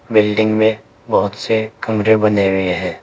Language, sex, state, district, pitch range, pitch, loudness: Hindi, male, Uttar Pradesh, Saharanpur, 105-110 Hz, 110 Hz, -16 LUFS